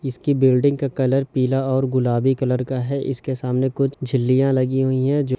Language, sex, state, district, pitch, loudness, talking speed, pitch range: Hindi, male, Chhattisgarh, Rajnandgaon, 130 Hz, -20 LUFS, 190 wpm, 130-135 Hz